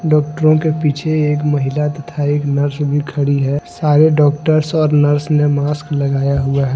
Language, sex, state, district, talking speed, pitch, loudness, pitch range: Hindi, male, Jharkhand, Deoghar, 180 wpm, 145 Hz, -15 LUFS, 145-150 Hz